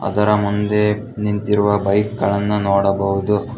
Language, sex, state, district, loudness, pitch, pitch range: Kannada, male, Karnataka, Bangalore, -18 LUFS, 105 Hz, 100-105 Hz